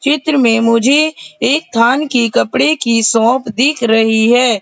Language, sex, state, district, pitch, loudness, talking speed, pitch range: Hindi, female, Madhya Pradesh, Katni, 240 Hz, -12 LUFS, 155 wpm, 230-285 Hz